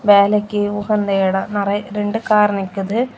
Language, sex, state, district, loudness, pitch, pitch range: Tamil, female, Tamil Nadu, Kanyakumari, -17 LUFS, 205 Hz, 200-210 Hz